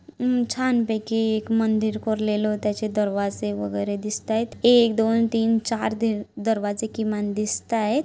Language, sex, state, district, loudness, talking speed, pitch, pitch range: Marathi, female, Maharashtra, Dhule, -23 LUFS, 125 wpm, 220 Hz, 210-225 Hz